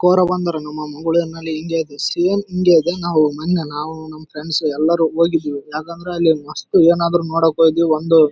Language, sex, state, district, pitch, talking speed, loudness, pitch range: Kannada, male, Karnataka, Raichur, 165 Hz, 145 wpm, -17 LUFS, 155-170 Hz